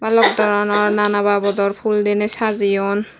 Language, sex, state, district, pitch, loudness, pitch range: Chakma, female, Tripura, West Tripura, 205 Hz, -17 LUFS, 205-210 Hz